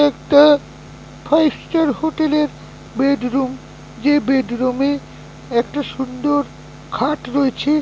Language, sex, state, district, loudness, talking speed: Bengali, male, West Bengal, North 24 Parganas, -18 LUFS, 115 wpm